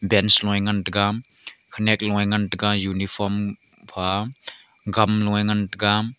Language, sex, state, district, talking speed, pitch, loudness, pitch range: Wancho, male, Arunachal Pradesh, Longding, 135 wpm, 105 Hz, -20 LUFS, 100-105 Hz